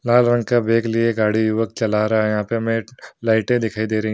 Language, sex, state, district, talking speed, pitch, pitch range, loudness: Hindi, male, Bihar, Madhepura, 275 wpm, 115 Hz, 110-115 Hz, -19 LUFS